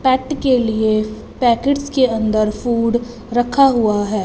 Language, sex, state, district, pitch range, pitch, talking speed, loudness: Hindi, female, Punjab, Fazilka, 215-260 Hz, 235 Hz, 140 wpm, -17 LUFS